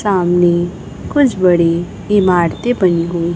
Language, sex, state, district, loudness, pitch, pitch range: Hindi, female, Chhattisgarh, Raipur, -14 LUFS, 175 Hz, 170-200 Hz